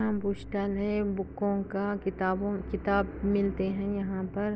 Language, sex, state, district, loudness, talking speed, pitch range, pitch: Hindi, female, Andhra Pradesh, Anantapur, -30 LUFS, 170 wpm, 195-205 Hz, 200 Hz